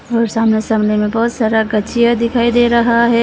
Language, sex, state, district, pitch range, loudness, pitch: Hindi, female, Arunachal Pradesh, Lower Dibang Valley, 220-235 Hz, -14 LUFS, 230 Hz